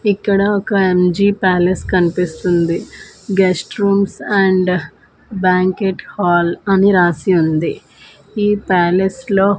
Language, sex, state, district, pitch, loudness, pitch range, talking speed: Telugu, female, Andhra Pradesh, Manyam, 190 Hz, -15 LUFS, 180-200 Hz, 115 wpm